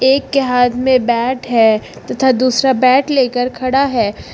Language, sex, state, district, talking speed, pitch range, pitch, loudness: Hindi, female, Uttar Pradesh, Lucknow, 165 wpm, 245-265 Hz, 255 Hz, -14 LUFS